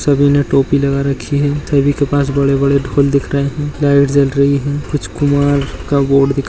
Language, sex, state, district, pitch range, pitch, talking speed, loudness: Hindi, male, Bihar, Begusarai, 140-145 Hz, 140 Hz, 220 wpm, -14 LUFS